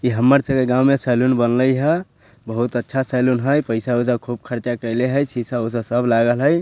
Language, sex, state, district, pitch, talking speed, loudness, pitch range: Bhojpuri, male, Bihar, Sitamarhi, 125 Hz, 200 wpm, -19 LUFS, 120-130 Hz